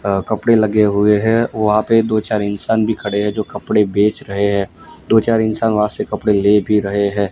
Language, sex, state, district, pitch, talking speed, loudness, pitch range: Hindi, male, Gujarat, Gandhinagar, 105 Hz, 230 wpm, -16 LUFS, 100-110 Hz